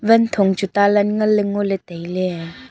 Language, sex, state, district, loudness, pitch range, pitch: Wancho, female, Arunachal Pradesh, Longding, -18 LUFS, 185-210 Hz, 200 Hz